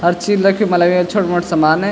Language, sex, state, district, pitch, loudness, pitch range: Garhwali, male, Uttarakhand, Tehri Garhwal, 180 Hz, -14 LUFS, 175-200 Hz